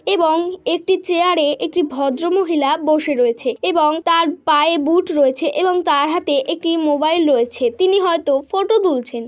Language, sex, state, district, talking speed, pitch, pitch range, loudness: Bengali, female, West Bengal, Dakshin Dinajpur, 150 wpm, 320 Hz, 290-355 Hz, -16 LUFS